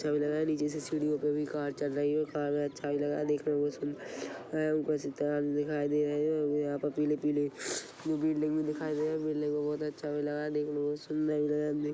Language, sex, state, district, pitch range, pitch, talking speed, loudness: Hindi, male, Chhattisgarh, Kabirdham, 145-150 Hz, 150 Hz, 250 wpm, -32 LUFS